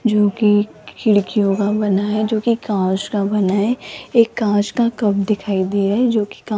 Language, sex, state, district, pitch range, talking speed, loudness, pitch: Hindi, female, Rajasthan, Jaipur, 200-220 Hz, 220 wpm, -18 LUFS, 210 Hz